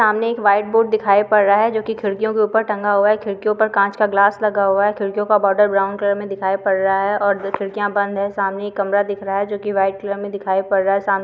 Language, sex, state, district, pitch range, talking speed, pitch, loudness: Hindi, female, Uttarakhand, Uttarkashi, 200-210 Hz, 285 wpm, 200 Hz, -18 LUFS